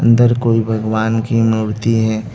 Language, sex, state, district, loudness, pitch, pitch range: Hindi, male, Arunachal Pradesh, Lower Dibang Valley, -15 LUFS, 110 Hz, 110-115 Hz